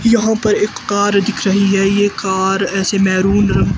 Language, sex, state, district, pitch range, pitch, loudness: Hindi, female, Himachal Pradesh, Shimla, 195-210 Hz, 200 Hz, -14 LUFS